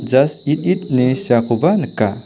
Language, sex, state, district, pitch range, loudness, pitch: Garo, male, Meghalaya, South Garo Hills, 120-155 Hz, -16 LUFS, 130 Hz